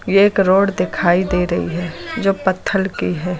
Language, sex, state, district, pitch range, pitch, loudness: Hindi, female, Uttar Pradesh, Lucknow, 180-195 Hz, 190 Hz, -17 LUFS